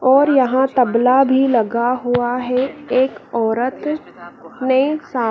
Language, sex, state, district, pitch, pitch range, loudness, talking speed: Hindi, female, Madhya Pradesh, Dhar, 255 Hz, 245-270 Hz, -17 LUFS, 135 wpm